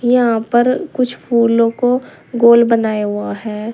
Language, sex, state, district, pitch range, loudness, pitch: Hindi, female, Uttar Pradesh, Saharanpur, 225-245 Hz, -14 LUFS, 235 Hz